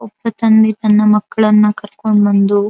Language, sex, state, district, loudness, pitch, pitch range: Kannada, female, Karnataka, Dharwad, -12 LUFS, 210 Hz, 210-220 Hz